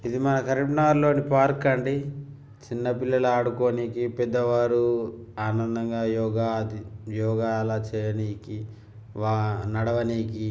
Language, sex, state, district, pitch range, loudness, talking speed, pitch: Telugu, male, Telangana, Karimnagar, 110-125 Hz, -25 LUFS, 105 wpm, 115 Hz